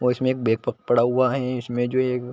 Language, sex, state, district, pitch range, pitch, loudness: Hindi, male, Chhattisgarh, Bilaspur, 120-130 Hz, 125 Hz, -22 LUFS